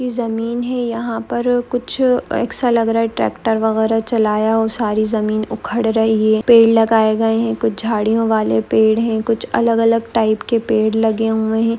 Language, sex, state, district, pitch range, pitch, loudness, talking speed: Hindi, female, Maharashtra, Aurangabad, 220-230 Hz, 225 Hz, -16 LUFS, 190 wpm